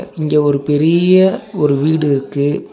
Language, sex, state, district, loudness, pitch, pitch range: Tamil, male, Tamil Nadu, Nilgiris, -14 LUFS, 150 Hz, 145-170 Hz